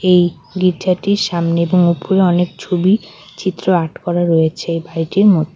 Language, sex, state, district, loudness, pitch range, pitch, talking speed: Bengali, female, West Bengal, Cooch Behar, -15 LUFS, 165-185 Hz, 175 Hz, 140 wpm